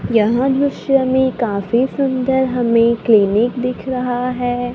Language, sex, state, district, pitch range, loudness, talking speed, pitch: Hindi, female, Maharashtra, Gondia, 235-260 Hz, -16 LUFS, 125 wpm, 245 Hz